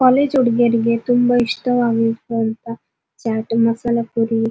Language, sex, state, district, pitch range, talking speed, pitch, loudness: Kannada, female, Karnataka, Dharwad, 230-245 Hz, 105 wpm, 230 Hz, -17 LUFS